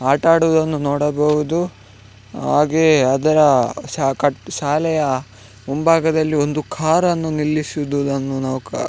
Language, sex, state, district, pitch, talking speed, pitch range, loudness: Kannada, male, Karnataka, Dakshina Kannada, 150 Hz, 100 wpm, 135-155 Hz, -18 LUFS